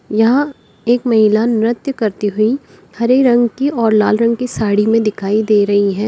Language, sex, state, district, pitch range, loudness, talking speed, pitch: Hindi, female, Uttar Pradesh, Lalitpur, 210-240 Hz, -14 LUFS, 185 wpm, 225 Hz